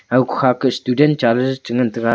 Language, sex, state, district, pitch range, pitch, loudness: Wancho, male, Arunachal Pradesh, Longding, 120-130 Hz, 125 Hz, -17 LUFS